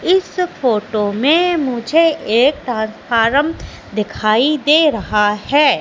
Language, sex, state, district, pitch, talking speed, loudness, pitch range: Hindi, female, Madhya Pradesh, Katni, 265 Hz, 105 wpm, -15 LUFS, 220-315 Hz